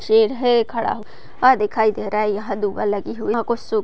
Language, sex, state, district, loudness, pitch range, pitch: Hindi, female, Chhattisgarh, Kabirdham, -20 LUFS, 210-235 Hz, 220 Hz